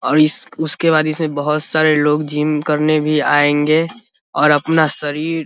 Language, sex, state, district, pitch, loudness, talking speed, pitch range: Hindi, male, Bihar, Vaishali, 155 Hz, -15 LUFS, 185 wpm, 150-160 Hz